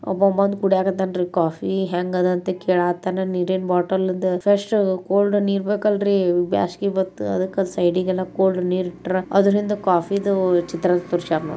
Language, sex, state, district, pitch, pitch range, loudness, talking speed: Kannada, female, Karnataka, Bijapur, 185 Hz, 180-195 Hz, -20 LUFS, 135 wpm